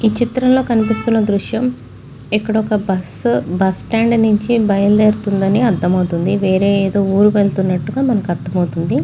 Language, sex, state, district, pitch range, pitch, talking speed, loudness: Telugu, female, Andhra Pradesh, Chittoor, 180-220 Hz, 200 Hz, 120 wpm, -15 LUFS